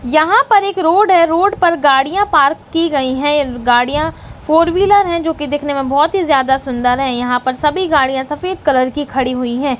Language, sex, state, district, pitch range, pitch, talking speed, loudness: Hindi, female, Uttarakhand, Uttarkashi, 265-340 Hz, 295 Hz, 215 wpm, -14 LUFS